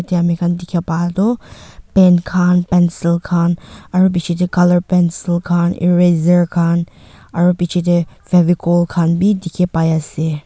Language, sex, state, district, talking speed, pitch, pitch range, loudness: Nagamese, female, Nagaland, Dimapur, 155 wpm, 175 Hz, 170-180 Hz, -15 LUFS